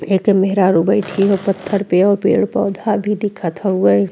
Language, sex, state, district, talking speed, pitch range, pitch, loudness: Bhojpuri, female, Uttar Pradesh, Deoria, 160 wpm, 185-200 Hz, 195 Hz, -16 LUFS